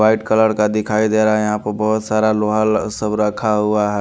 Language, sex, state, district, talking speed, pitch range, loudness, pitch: Hindi, male, Haryana, Charkhi Dadri, 255 wpm, 105-110 Hz, -17 LUFS, 110 Hz